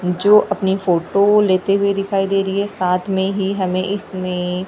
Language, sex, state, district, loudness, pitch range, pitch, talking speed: Hindi, female, Maharashtra, Gondia, -17 LUFS, 185-200 Hz, 195 Hz, 180 wpm